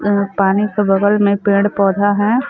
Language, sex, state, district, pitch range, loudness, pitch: Chhattisgarhi, female, Chhattisgarh, Sarguja, 200-205 Hz, -14 LUFS, 200 Hz